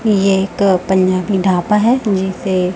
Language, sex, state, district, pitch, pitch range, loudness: Hindi, female, Chhattisgarh, Raipur, 190 Hz, 185-200 Hz, -14 LUFS